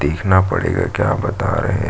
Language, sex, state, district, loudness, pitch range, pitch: Hindi, male, Chhattisgarh, Jashpur, -18 LUFS, 90-105 Hz, 100 Hz